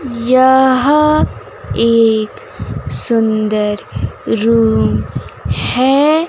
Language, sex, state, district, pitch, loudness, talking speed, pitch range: Hindi, female, Bihar, West Champaran, 230 Hz, -13 LUFS, 50 wpm, 210-260 Hz